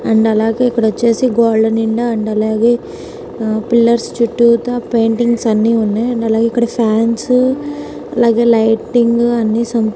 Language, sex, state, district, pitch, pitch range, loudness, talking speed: Telugu, female, Telangana, Karimnagar, 230 Hz, 225-235 Hz, -13 LUFS, 125 wpm